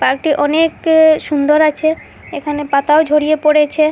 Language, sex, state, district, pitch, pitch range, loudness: Bengali, female, Assam, Hailakandi, 305 Hz, 295-315 Hz, -13 LUFS